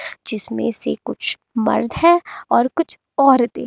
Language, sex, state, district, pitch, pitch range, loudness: Hindi, female, Himachal Pradesh, Shimla, 240 Hz, 210-320 Hz, -18 LUFS